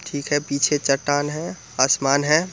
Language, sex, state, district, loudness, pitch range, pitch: Hindi, male, Bihar, Muzaffarpur, -21 LUFS, 140-150 Hz, 145 Hz